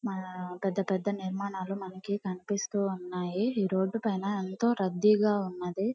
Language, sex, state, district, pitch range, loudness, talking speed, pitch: Telugu, female, Andhra Pradesh, Guntur, 185-205 Hz, -31 LUFS, 120 wpm, 195 Hz